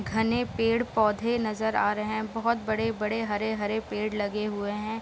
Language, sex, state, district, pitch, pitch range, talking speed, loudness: Hindi, female, Bihar, Sitamarhi, 220 Hz, 210-225 Hz, 155 wpm, -28 LUFS